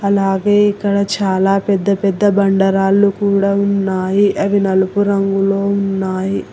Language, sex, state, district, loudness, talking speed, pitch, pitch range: Telugu, female, Telangana, Hyderabad, -15 LUFS, 110 wpm, 200 Hz, 195-200 Hz